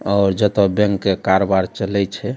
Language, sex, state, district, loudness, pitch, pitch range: Maithili, male, Bihar, Darbhanga, -17 LUFS, 100 Hz, 95-100 Hz